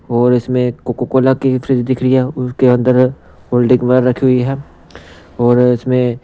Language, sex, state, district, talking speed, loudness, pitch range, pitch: Hindi, male, Punjab, Pathankot, 180 wpm, -14 LUFS, 120-130 Hz, 125 Hz